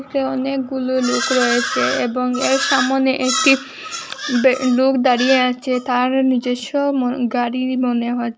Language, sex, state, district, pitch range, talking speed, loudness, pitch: Bengali, female, Assam, Hailakandi, 250-265 Hz, 120 wpm, -17 LUFS, 255 Hz